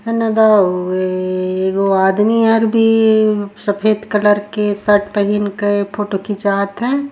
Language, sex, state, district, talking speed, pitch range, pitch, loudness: Surgujia, female, Chhattisgarh, Sarguja, 125 wpm, 200-220 Hz, 205 Hz, -15 LUFS